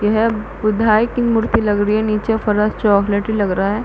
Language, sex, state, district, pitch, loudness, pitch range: Hindi, female, Chhattisgarh, Bastar, 215 Hz, -16 LUFS, 210-225 Hz